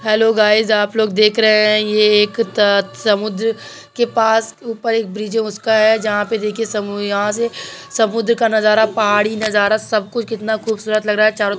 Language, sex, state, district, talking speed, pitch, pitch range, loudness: Hindi, male, Uttar Pradesh, Hamirpur, 190 wpm, 215 Hz, 210-225 Hz, -16 LUFS